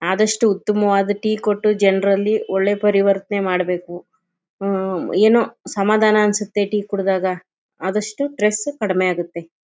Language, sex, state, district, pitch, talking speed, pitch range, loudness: Kannada, male, Karnataka, Chamarajanagar, 200 Hz, 105 wpm, 185-210 Hz, -18 LUFS